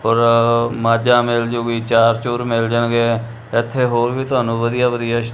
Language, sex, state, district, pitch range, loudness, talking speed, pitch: Punjabi, male, Punjab, Kapurthala, 115-120 Hz, -17 LUFS, 145 wpm, 115 Hz